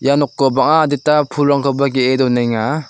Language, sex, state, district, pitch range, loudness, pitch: Garo, male, Meghalaya, South Garo Hills, 130-145 Hz, -15 LUFS, 140 Hz